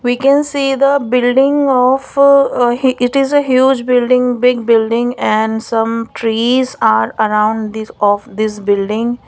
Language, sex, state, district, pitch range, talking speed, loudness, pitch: English, female, Maharashtra, Gondia, 220-265 Hz, 150 wpm, -13 LUFS, 245 Hz